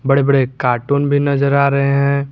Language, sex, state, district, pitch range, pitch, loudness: Hindi, male, Jharkhand, Garhwa, 135-140 Hz, 140 Hz, -15 LUFS